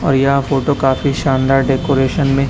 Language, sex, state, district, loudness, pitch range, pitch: Hindi, male, Chhattisgarh, Raipur, -15 LUFS, 135-140 Hz, 135 Hz